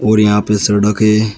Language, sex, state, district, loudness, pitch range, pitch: Hindi, male, Uttar Pradesh, Shamli, -12 LUFS, 105-110 Hz, 105 Hz